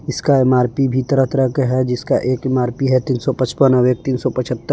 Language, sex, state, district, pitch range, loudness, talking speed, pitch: Hindi, male, Jharkhand, Palamu, 125-135 Hz, -17 LUFS, 240 wpm, 130 Hz